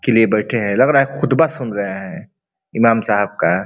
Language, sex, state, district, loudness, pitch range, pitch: Bhojpuri, male, Uttar Pradesh, Ghazipur, -16 LUFS, 105-130 Hz, 115 Hz